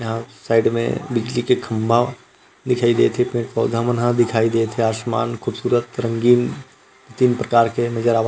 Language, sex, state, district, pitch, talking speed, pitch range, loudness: Chhattisgarhi, male, Chhattisgarh, Rajnandgaon, 120 Hz, 165 wpm, 115-125 Hz, -19 LUFS